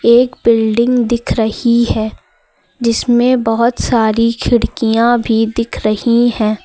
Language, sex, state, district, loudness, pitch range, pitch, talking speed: Hindi, female, Uttar Pradesh, Lucknow, -13 LUFS, 225-240 Hz, 235 Hz, 115 wpm